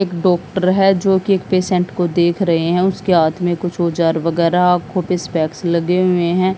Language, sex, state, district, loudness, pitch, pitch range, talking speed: Hindi, female, Haryana, Jhajjar, -16 LUFS, 180 Hz, 170-185 Hz, 210 wpm